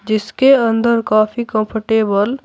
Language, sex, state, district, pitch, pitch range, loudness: Hindi, female, Bihar, Patna, 225 Hz, 215-235 Hz, -15 LUFS